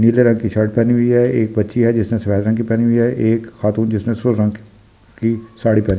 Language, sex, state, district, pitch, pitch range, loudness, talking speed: Hindi, male, Delhi, New Delhi, 115 Hz, 110-115 Hz, -16 LUFS, 260 wpm